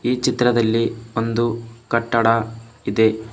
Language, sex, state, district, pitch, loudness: Kannada, male, Karnataka, Bidar, 115 Hz, -20 LUFS